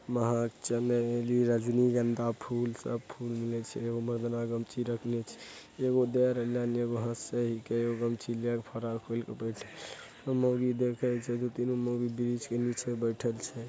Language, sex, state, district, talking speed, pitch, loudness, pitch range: Angika, male, Bihar, Begusarai, 195 wpm, 120 Hz, -32 LUFS, 115-120 Hz